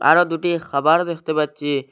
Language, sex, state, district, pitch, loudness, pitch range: Bengali, male, Assam, Hailakandi, 160 Hz, -19 LUFS, 145-170 Hz